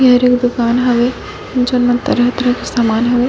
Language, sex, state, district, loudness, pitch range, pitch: Chhattisgarhi, female, Chhattisgarh, Raigarh, -14 LUFS, 245-250 Hz, 245 Hz